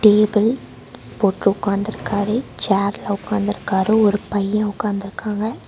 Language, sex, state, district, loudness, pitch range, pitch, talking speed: Tamil, female, Tamil Nadu, Nilgiris, -20 LUFS, 195-215 Hz, 205 Hz, 85 wpm